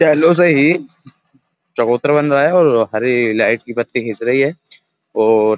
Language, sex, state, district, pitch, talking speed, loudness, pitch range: Hindi, male, Uttar Pradesh, Muzaffarnagar, 120 Hz, 185 wpm, -14 LUFS, 115-145 Hz